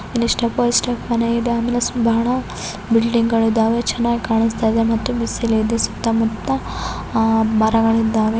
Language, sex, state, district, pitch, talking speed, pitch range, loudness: Kannada, female, Karnataka, Belgaum, 230 Hz, 130 wpm, 225-235 Hz, -18 LUFS